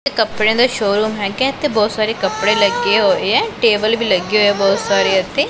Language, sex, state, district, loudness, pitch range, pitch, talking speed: Punjabi, female, Punjab, Pathankot, -15 LUFS, 200-245 Hz, 215 Hz, 220 wpm